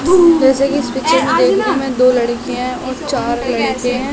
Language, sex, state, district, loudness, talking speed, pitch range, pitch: Hindi, female, Delhi, New Delhi, -14 LUFS, 130 wpm, 250-275 Hz, 260 Hz